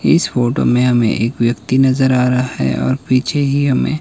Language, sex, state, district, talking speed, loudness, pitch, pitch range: Hindi, male, Himachal Pradesh, Shimla, 210 wpm, -15 LUFS, 125 Hz, 115-135 Hz